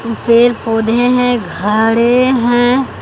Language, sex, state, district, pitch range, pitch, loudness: Hindi, male, Bihar, Katihar, 225-245 Hz, 240 Hz, -12 LUFS